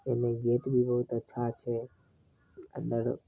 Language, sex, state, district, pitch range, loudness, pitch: Maithili, male, Bihar, Begusarai, 120-125 Hz, -32 LUFS, 120 Hz